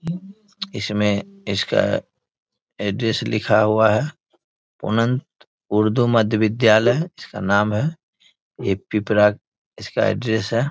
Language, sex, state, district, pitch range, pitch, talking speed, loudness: Hindi, male, Bihar, Bhagalpur, 105-125 Hz, 110 Hz, 100 wpm, -20 LUFS